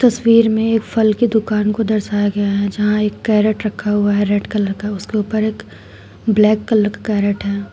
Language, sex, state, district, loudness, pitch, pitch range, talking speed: Hindi, female, Uttar Pradesh, Shamli, -16 LUFS, 210 Hz, 205-215 Hz, 210 wpm